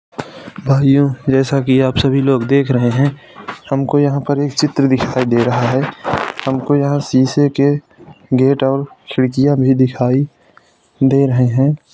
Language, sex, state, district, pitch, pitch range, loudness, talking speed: Hindi, male, Uttar Pradesh, Hamirpur, 135 Hz, 130-140 Hz, -15 LUFS, 150 wpm